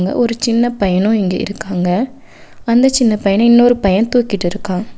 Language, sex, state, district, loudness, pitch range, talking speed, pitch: Tamil, female, Tamil Nadu, Nilgiris, -14 LUFS, 190-240 Hz, 145 wpm, 215 Hz